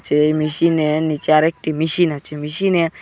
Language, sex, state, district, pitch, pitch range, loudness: Bengali, male, Assam, Hailakandi, 155 Hz, 150-165 Hz, -17 LUFS